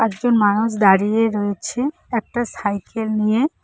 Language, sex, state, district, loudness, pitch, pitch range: Bengali, female, West Bengal, Cooch Behar, -19 LUFS, 220 Hz, 205-235 Hz